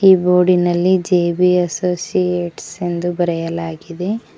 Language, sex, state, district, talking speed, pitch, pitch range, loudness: Kannada, female, Karnataka, Koppal, 110 wpm, 180 Hz, 175-180 Hz, -17 LUFS